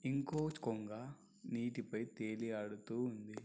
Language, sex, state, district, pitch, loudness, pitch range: Telugu, male, Andhra Pradesh, Guntur, 115 Hz, -43 LUFS, 110-125 Hz